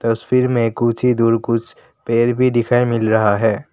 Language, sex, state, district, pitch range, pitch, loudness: Hindi, male, Assam, Kamrup Metropolitan, 115-125 Hz, 115 Hz, -16 LUFS